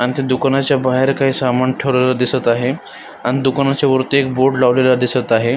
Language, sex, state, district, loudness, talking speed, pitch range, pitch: Marathi, male, Maharashtra, Solapur, -15 LUFS, 185 wpm, 125-135 Hz, 130 Hz